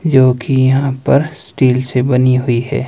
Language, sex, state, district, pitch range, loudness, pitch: Hindi, male, Himachal Pradesh, Shimla, 125-135 Hz, -13 LUFS, 130 Hz